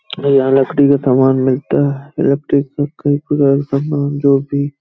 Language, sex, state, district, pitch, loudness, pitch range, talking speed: Hindi, male, Uttar Pradesh, Hamirpur, 140 Hz, -14 LUFS, 140-145 Hz, 160 wpm